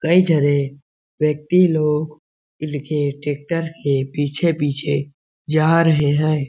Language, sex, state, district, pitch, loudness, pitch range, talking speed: Hindi, male, Chhattisgarh, Balrampur, 150 Hz, -19 LUFS, 145-160 Hz, 100 wpm